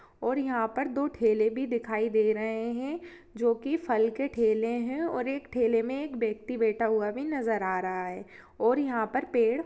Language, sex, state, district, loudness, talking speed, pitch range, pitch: Hindi, female, Chhattisgarh, Kabirdham, -29 LUFS, 205 wpm, 220-270 Hz, 235 Hz